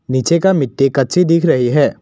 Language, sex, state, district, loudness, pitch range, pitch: Hindi, male, Assam, Kamrup Metropolitan, -14 LUFS, 130-170 Hz, 145 Hz